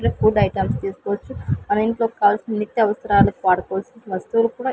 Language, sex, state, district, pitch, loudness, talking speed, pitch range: Telugu, female, Andhra Pradesh, Sri Satya Sai, 210 Hz, -20 LUFS, 140 wpm, 200-230 Hz